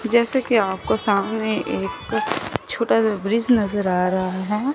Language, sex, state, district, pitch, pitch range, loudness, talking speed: Hindi, female, Chandigarh, Chandigarh, 210 Hz, 190-230 Hz, -21 LUFS, 150 wpm